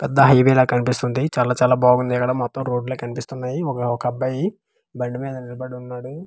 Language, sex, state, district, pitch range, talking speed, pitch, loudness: Telugu, male, Andhra Pradesh, Manyam, 125-135 Hz, 180 wpm, 125 Hz, -20 LUFS